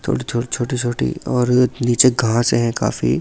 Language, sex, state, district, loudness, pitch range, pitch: Hindi, male, Delhi, New Delhi, -18 LUFS, 115-125 Hz, 120 Hz